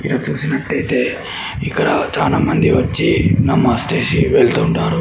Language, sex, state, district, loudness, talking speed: Telugu, male, Andhra Pradesh, Srikakulam, -16 LUFS, 95 wpm